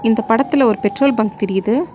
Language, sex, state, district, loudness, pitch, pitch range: Tamil, female, Tamil Nadu, Nilgiris, -16 LUFS, 225 Hz, 210-270 Hz